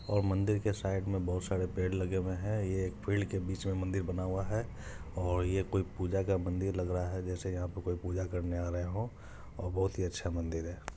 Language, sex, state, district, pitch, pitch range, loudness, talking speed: Maithili, male, Bihar, Supaul, 95 Hz, 90-95 Hz, -35 LUFS, 245 wpm